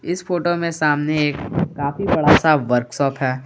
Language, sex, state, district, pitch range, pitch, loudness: Hindi, male, Jharkhand, Garhwa, 140-170 Hz, 150 Hz, -18 LUFS